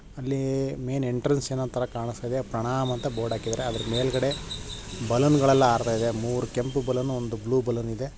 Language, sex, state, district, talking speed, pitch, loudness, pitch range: Kannada, male, Karnataka, Shimoga, 160 wpm, 125 Hz, -26 LUFS, 115-130 Hz